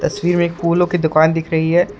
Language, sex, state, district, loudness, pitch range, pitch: Hindi, male, Jharkhand, Palamu, -16 LUFS, 160-175 Hz, 170 Hz